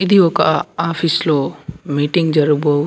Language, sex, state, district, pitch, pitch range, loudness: Telugu, male, Andhra Pradesh, Anantapur, 160 Hz, 150-170 Hz, -16 LUFS